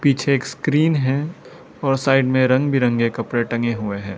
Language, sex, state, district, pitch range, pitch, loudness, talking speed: Hindi, male, Arunachal Pradesh, Lower Dibang Valley, 120-140 Hz, 130 Hz, -19 LUFS, 185 wpm